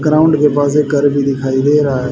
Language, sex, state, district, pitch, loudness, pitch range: Hindi, male, Haryana, Rohtak, 145 Hz, -13 LUFS, 135-150 Hz